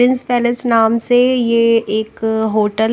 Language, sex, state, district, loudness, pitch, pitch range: Hindi, female, Punjab, Kapurthala, -15 LUFS, 230 Hz, 220-245 Hz